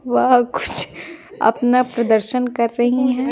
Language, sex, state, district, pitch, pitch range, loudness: Hindi, female, Bihar, Kaimur, 250 Hz, 240-260 Hz, -17 LUFS